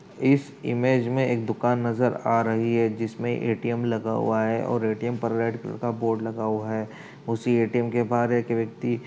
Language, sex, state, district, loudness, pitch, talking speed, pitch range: Hindi, male, Uttar Pradesh, Budaun, -25 LUFS, 115 Hz, 205 wpm, 115-120 Hz